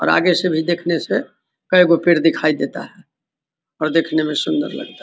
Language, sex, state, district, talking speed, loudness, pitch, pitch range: Hindi, male, Bihar, Vaishali, 200 wpm, -17 LUFS, 165 Hz, 155-175 Hz